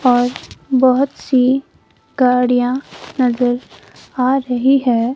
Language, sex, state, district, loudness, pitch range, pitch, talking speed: Hindi, female, Himachal Pradesh, Shimla, -16 LUFS, 245-265 Hz, 255 Hz, 95 wpm